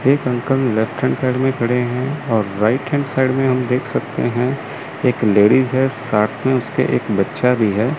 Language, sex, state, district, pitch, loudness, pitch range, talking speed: Hindi, male, Chandigarh, Chandigarh, 125 Hz, -18 LUFS, 120-135 Hz, 205 wpm